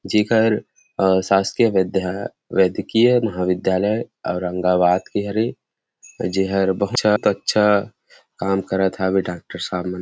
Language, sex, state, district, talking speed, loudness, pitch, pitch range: Chhattisgarhi, male, Chhattisgarh, Rajnandgaon, 115 wpm, -20 LUFS, 95 Hz, 90-105 Hz